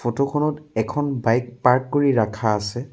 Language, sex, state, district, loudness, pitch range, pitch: Assamese, male, Assam, Sonitpur, -21 LUFS, 115-145 Hz, 125 Hz